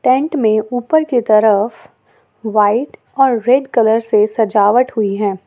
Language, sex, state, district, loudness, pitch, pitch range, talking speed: Hindi, female, Jharkhand, Ranchi, -14 LUFS, 225 Hz, 215-255 Hz, 145 wpm